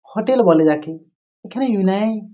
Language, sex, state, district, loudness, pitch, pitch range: Bengali, female, West Bengal, Jhargram, -17 LUFS, 210 Hz, 165-220 Hz